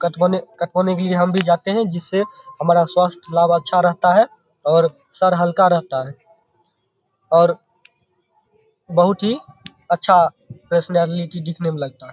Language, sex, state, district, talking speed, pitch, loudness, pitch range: Hindi, male, Bihar, Begusarai, 145 wpm, 175 Hz, -18 LUFS, 170-190 Hz